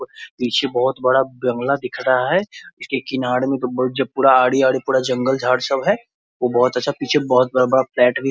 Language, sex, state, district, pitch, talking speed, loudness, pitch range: Hindi, male, Bihar, Muzaffarpur, 130 Hz, 195 wpm, -18 LUFS, 125-135 Hz